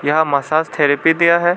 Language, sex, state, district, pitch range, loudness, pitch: Hindi, male, Arunachal Pradesh, Lower Dibang Valley, 145-170 Hz, -15 LUFS, 160 Hz